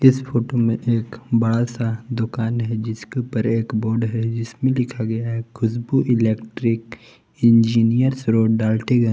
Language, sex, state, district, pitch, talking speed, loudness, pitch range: Hindi, male, Jharkhand, Palamu, 115 Hz, 145 wpm, -20 LUFS, 115-120 Hz